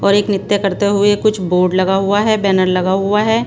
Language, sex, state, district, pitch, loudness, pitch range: Hindi, female, Bihar, Patna, 200 Hz, -14 LUFS, 190-205 Hz